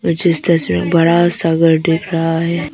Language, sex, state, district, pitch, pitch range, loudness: Hindi, female, Arunachal Pradesh, Papum Pare, 165 Hz, 165-170 Hz, -14 LUFS